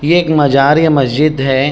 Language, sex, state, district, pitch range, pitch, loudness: Chhattisgarhi, male, Chhattisgarh, Rajnandgaon, 135-155 Hz, 145 Hz, -11 LUFS